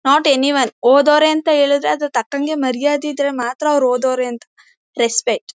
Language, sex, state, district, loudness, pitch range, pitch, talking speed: Kannada, female, Karnataka, Mysore, -16 LUFS, 250-295 Hz, 280 Hz, 175 wpm